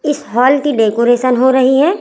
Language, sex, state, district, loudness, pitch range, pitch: Hindi, female, Chhattisgarh, Raipur, -12 LUFS, 245-290 Hz, 260 Hz